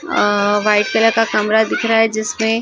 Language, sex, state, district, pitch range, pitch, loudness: Hindi, female, Maharashtra, Gondia, 210-225 Hz, 220 Hz, -15 LUFS